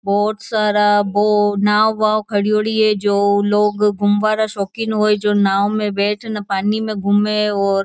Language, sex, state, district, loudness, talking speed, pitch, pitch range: Marwari, female, Rajasthan, Churu, -16 LUFS, 170 wpm, 210 Hz, 205-215 Hz